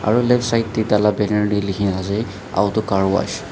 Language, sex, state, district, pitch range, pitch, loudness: Nagamese, male, Nagaland, Dimapur, 100-110 Hz, 105 Hz, -19 LUFS